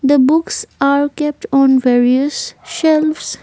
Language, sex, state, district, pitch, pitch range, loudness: English, female, Assam, Kamrup Metropolitan, 285 Hz, 270-310 Hz, -14 LUFS